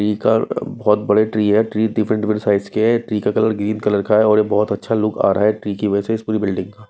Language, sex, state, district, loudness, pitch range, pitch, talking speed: Hindi, male, Bihar, West Champaran, -17 LUFS, 105-110 Hz, 105 Hz, 295 wpm